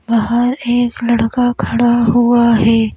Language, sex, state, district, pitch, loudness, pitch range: Hindi, female, Madhya Pradesh, Bhopal, 235 Hz, -13 LUFS, 230-240 Hz